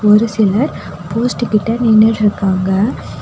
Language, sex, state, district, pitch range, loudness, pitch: Tamil, female, Tamil Nadu, Nilgiris, 200-230 Hz, -14 LUFS, 215 Hz